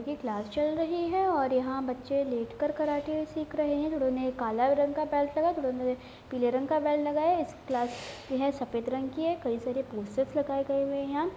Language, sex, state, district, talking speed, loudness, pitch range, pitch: Hindi, female, Bihar, Gopalganj, 235 wpm, -30 LUFS, 255-305 Hz, 275 Hz